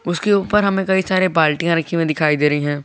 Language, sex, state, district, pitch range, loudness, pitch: Hindi, male, Jharkhand, Garhwa, 155-190 Hz, -17 LUFS, 170 Hz